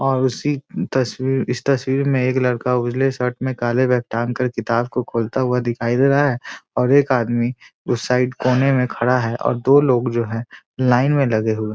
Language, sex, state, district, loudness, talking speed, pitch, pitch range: Hindi, male, Bihar, Muzaffarpur, -19 LUFS, 215 wpm, 125 Hz, 120-130 Hz